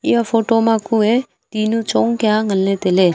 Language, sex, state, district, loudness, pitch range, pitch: Wancho, female, Arunachal Pradesh, Longding, -16 LUFS, 205-225 Hz, 220 Hz